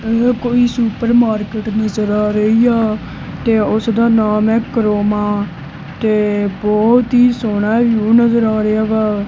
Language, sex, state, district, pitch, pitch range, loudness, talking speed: Punjabi, female, Punjab, Kapurthala, 220 Hz, 210-230 Hz, -14 LUFS, 135 wpm